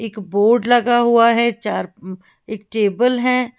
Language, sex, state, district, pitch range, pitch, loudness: Hindi, female, Uttar Pradesh, Lalitpur, 210-240 Hz, 230 Hz, -16 LUFS